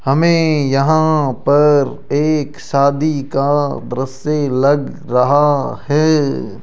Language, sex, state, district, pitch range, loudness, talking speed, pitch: Hindi, male, Rajasthan, Jaipur, 135-150 Hz, -15 LUFS, 90 wpm, 145 Hz